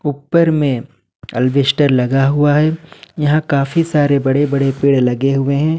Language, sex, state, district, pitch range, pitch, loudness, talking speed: Hindi, male, Jharkhand, Ranchi, 135-150 Hz, 140 Hz, -14 LUFS, 155 wpm